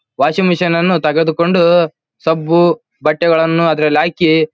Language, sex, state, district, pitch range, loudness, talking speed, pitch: Kannada, male, Karnataka, Bellary, 160-170 Hz, -13 LUFS, 105 wpm, 165 Hz